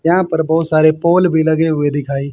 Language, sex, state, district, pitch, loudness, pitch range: Hindi, male, Haryana, Rohtak, 160 Hz, -14 LUFS, 155-165 Hz